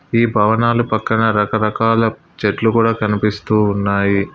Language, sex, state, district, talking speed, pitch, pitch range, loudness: Telugu, male, Telangana, Hyderabad, 110 wpm, 110 Hz, 105-115 Hz, -16 LUFS